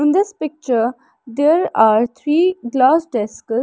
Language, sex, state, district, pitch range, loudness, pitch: English, female, Haryana, Rohtak, 235-320 Hz, -17 LUFS, 275 Hz